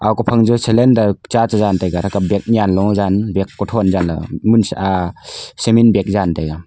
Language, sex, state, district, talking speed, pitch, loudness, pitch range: Wancho, male, Arunachal Pradesh, Longding, 155 wpm, 100 Hz, -15 LUFS, 95-115 Hz